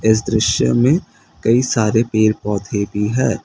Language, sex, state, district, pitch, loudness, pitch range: Hindi, male, Assam, Kamrup Metropolitan, 110 Hz, -17 LUFS, 105-115 Hz